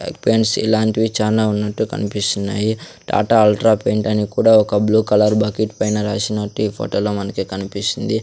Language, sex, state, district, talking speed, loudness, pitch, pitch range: Telugu, male, Andhra Pradesh, Sri Satya Sai, 155 wpm, -17 LUFS, 105 Hz, 105-110 Hz